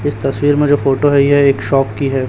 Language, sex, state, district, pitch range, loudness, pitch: Hindi, male, Chhattisgarh, Raipur, 135-145 Hz, -13 LUFS, 140 Hz